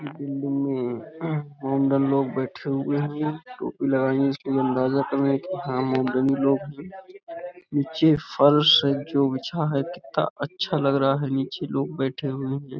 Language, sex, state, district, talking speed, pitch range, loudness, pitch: Hindi, male, Uttar Pradesh, Budaun, 150 wpm, 135-150 Hz, -24 LUFS, 140 Hz